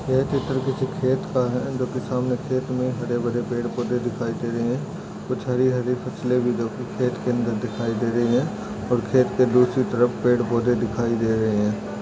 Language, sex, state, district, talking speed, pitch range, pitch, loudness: Hindi, male, Maharashtra, Nagpur, 215 wpm, 120-130 Hz, 125 Hz, -23 LUFS